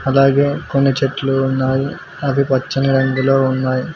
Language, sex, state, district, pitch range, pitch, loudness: Telugu, male, Telangana, Mahabubabad, 130-135 Hz, 135 Hz, -16 LUFS